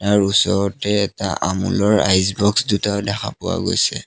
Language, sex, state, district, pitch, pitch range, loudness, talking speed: Assamese, male, Assam, Sonitpur, 100 Hz, 95-105 Hz, -18 LUFS, 150 wpm